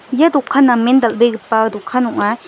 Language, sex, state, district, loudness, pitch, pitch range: Garo, female, Meghalaya, West Garo Hills, -14 LUFS, 240 Hz, 230-260 Hz